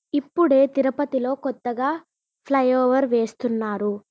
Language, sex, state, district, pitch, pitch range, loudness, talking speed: Telugu, female, Andhra Pradesh, Chittoor, 265 Hz, 245-275 Hz, -22 LUFS, 100 wpm